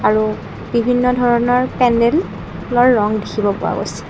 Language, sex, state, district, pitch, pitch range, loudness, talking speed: Assamese, female, Assam, Kamrup Metropolitan, 240 Hz, 215-245 Hz, -16 LUFS, 130 wpm